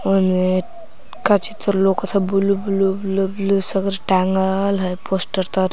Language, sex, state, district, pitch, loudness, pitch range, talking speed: Magahi, female, Jharkhand, Palamu, 195 Hz, -18 LUFS, 190-200 Hz, 155 wpm